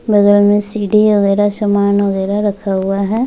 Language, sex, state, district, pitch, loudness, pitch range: Hindi, female, Bihar, Muzaffarpur, 205 Hz, -13 LUFS, 200-210 Hz